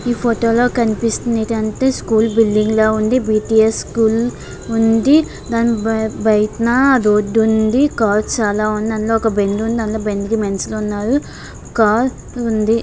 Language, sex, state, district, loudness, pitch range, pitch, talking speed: Telugu, female, Andhra Pradesh, Visakhapatnam, -16 LUFS, 215-230 Hz, 225 Hz, 125 wpm